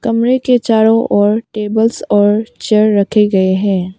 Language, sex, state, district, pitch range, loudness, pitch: Hindi, female, Arunachal Pradesh, Papum Pare, 205-230 Hz, -12 LUFS, 215 Hz